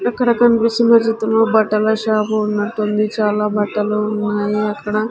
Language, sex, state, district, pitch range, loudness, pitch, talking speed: Telugu, female, Andhra Pradesh, Sri Satya Sai, 210-225 Hz, -16 LUFS, 215 Hz, 130 wpm